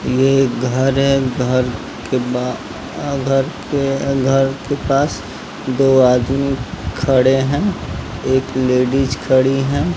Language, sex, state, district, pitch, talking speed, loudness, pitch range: Hindi, male, Bihar, West Champaran, 135 Hz, 110 wpm, -17 LUFS, 125-135 Hz